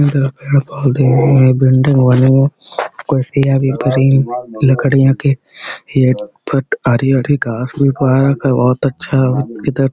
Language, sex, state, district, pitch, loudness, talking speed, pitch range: Hindi, male, Uttar Pradesh, Budaun, 135 Hz, -13 LUFS, 75 wpm, 130-140 Hz